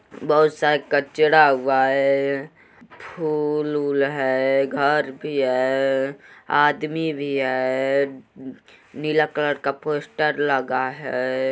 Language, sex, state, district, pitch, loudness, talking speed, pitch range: Hindi, male, Uttar Pradesh, Gorakhpur, 140 Hz, -21 LUFS, 110 wpm, 135-150 Hz